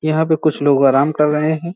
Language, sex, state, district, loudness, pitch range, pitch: Hindi, male, Uttar Pradesh, Hamirpur, -15 LUFS, 145-160 Hz, 155 Hz